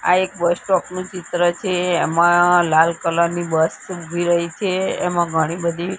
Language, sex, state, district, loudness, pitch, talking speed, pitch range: Gujarati, female, Gujarat, Gandhinagar, -18 LUFS, 175 Hz, 180 wpm, 170-180 Hz